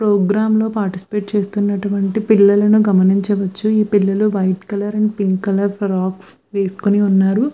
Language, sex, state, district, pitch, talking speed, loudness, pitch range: Telugu, female, Andhra Pradesh, Visakhapatnam, 200 Hz, 135 wpm, -16 LUFS, 195-210 Hz